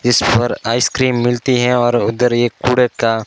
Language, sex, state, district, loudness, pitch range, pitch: Hindi, male, Rajasthan, Barmer, -15 LUFS, 120-125 Hz, 120 Hz